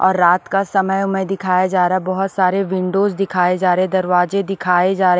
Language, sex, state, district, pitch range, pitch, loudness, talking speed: Hindi, female, Maharashtra, Washim, 180-195 Hz, 185 Hz, -17 LUFS, 205 wpm